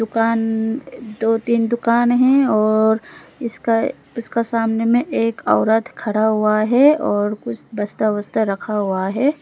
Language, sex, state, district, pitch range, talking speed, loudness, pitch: Hindi, female, Arunachal Pradesh, Lower Dibang Valley, 215-235 Hz, 140 wpm, -18 LUFS, 225 Hz